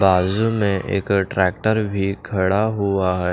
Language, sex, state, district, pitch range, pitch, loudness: Hindi, male, Maharashtra, Washim, 95-105 Hz, 100 Hz, -20 LUFS